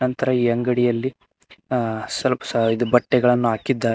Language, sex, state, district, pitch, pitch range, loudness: Kannada, male, Karnataka, Koppal, 120 Hz, 115-125 Hz, -20 LUFS